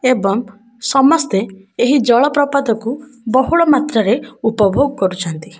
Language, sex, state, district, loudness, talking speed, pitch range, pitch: Odia, female, Odisha, Khordha, -15 LUFS, 85 wpm, 205-275 Hz, 240 Hz